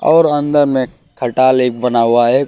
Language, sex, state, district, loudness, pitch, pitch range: Hindi, male, Bihar, Katihar, -13 LUFS, 130 Hz, 125-145 Hz